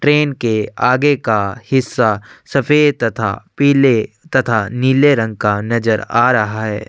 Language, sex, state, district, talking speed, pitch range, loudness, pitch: Hindi, male, Chhattisgarh, Sukma, 140 wpm, 110-140 Hz, -15 LUFS, 120 Hz